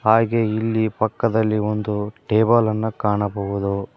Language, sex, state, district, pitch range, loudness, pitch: Kannada, male, Karnataka, Koppal, 105-110 Hz, -20 LUFS, 110 Hz